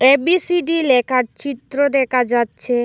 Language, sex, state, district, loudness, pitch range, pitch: Bengali, female, Assam, Hailakandi, -17 LUFS, 250-285 Hz, 270 Hz